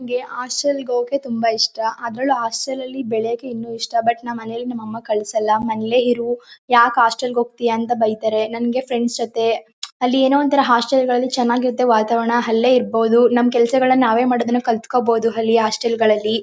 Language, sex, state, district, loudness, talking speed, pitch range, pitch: Kannada, female, Karnataka, Mysore, -18 LUFS, 170 wpm, 225-250 Hz, 235 Hz